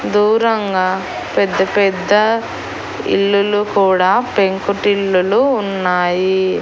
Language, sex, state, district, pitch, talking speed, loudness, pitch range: Telugu, female, Andhra Pradesh, Annamaya, 200 Hz, 65 wpm, -15 LUFS, 190-210 Hz